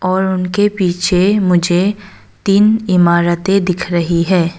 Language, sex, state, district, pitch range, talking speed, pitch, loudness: Hindi, female, Arunachal Pradesh, Papum Pare, 175-195 Hz, 115 wpm, 185 Hz, -13 LUFS